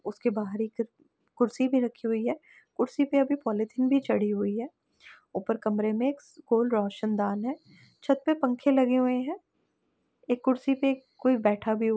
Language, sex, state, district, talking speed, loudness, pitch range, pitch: Hindi, female, Uttar Pradesh, Etah, 195 wpm, -28 LUFS, 220-270 Hz, 245 Hz